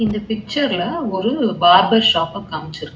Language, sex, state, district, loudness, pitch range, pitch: Tamil, female, Tamil Nadu, Chennai, -16 LUFS, 175-230 Hz, 210 Hz